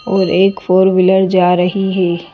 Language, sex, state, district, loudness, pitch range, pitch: Hindi, female, Madhya Pradesh, Bhopal, -12 LUFS, 180-190 Hz, 185 Hz